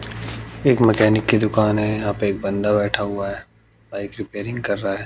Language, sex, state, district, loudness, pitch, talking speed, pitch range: Hindi, male, Bihar, West Champaran, -20 LUFS, 105 Hz, 200 wpm, 100-110 Hz